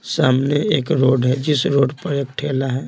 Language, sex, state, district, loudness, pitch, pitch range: Hindi, male, Bihar, Patna, -18 LUFS, 140 Hz, 130-150 Hz